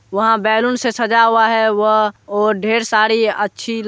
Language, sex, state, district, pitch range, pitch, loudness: Hindi, male, Bihar, Supaul, 215-230 Hz, 220 Hz, -15 LUFS